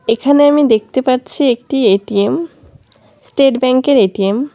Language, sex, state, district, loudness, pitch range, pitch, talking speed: Bengali, female, West Bengal, Cooch Behar, -13 LUFS, 225-280 Hz, 255 Hz, 130 wpm